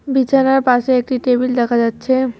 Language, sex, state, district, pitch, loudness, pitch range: Bengali, female, West Bengal, Cooch Behar, 255 Hz, -15 LUFS, 245-260 Hz